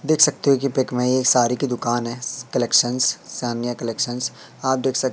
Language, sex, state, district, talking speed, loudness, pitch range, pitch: Hindi, male, Madhya Pradesh, Katni, 200 wpm, -21 LUFS, 120-135 Hz, 125 Hz